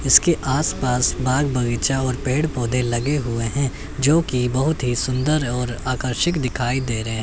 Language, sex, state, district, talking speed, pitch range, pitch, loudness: Hindi, male, Chandigarh, Chandigarh, 175 wpm, 120-140 Hz, 130 Hz, -20 LUFS